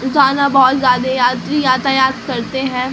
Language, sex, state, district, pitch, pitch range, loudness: Hindi, female, Bihar, Katihar, 265 Hz, 255-270 Hz, -14 LUFS